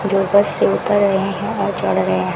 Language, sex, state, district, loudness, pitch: Hindi, female, Rajasthan, Bikaner, -17 LUFS, 195 Hz